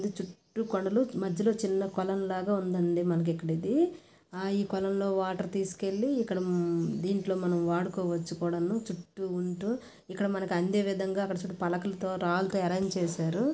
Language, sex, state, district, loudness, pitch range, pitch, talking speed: Telugu, female, Andhra Pradesh, Visakhapatnam, -31 LUFS, 180-200 Hz, 190 Hz, 125 wpm